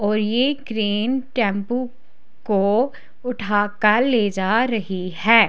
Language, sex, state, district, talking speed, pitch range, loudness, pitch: Hindi, female, Haryana, Charkhi Dadri, 120 wpm, 205-250 Hz, -20 LUFS, 220 Hz